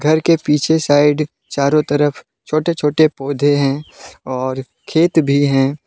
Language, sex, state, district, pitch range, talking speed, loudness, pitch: Hindi, male, Jharkhand, Deoghar, 140-155 Hz, 145 wpm, -16 LUFS, 145 Hz